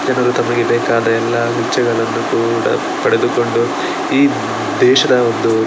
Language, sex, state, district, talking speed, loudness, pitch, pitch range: Kannada, male, Karnataka, Dakshina Kannada, 115 wpm, -15 LUFS, 120 Hz, 115-140 Hz